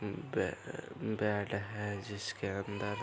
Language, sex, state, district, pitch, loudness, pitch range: Hindi, male, Bihar, Araria, 105 Hz, -38 LUFS, 100-105 Hz